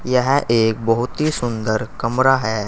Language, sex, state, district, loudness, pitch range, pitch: Hindi, male, Uttar Pradesh, Saharanpur, -18 LUFS, 110-130 Hz, 120 Hz